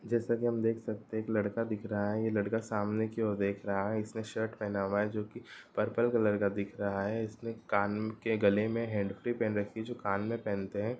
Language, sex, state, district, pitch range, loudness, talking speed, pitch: Hindi, male, Bihar, Gopalganj, 100-115 Hz, -33 LUFS, 260 wpm, 110 Hz